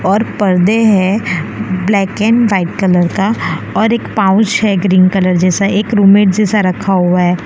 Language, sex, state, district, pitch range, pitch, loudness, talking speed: Hindi, female, Gujarat, Valsad, 185-210 Hz, 195 Hz, -12 LUFS, 175 wpm